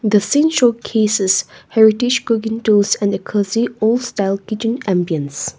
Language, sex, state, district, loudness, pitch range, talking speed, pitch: English, female, Nagaland, Kohima, -16 LUFS, 195-230 Hz, 140 wpm, 215 Hz